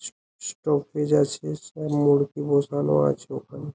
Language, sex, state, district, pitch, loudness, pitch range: Bengali, male, West Bengal, Jhargram, 145 Hz, -24 LUFS, 140-145 Hz